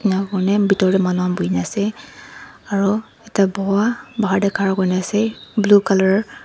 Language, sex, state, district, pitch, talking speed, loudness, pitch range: Nagamese, female, Nagaland, Dimapur, 195 Hz, 175 wpm, -18 LUFS, 190-205 Hz